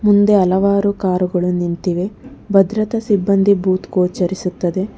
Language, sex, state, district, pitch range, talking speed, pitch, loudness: Kannada, female, Karnataka, Bangalore, 180-200 Hz, 95 wpm, 190 Hz, -16 LUFS